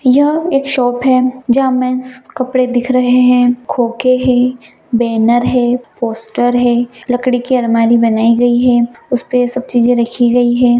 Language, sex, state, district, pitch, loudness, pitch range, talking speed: Hindi, female, Bihar, Gaya, 245 Hz, -13 LUFS, 240-255 Hz, 160 wpm